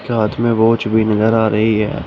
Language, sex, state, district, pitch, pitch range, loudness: Hindi, male, Uttar Pradesh, Shamli, 110 Hz, 110-115 Hz, -15 LUFS